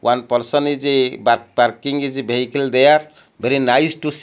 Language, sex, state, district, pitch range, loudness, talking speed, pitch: English, male, Odisha, Malkangiri, 120-145 Hz, -17 LUFS, 155 wpm, 135 Hz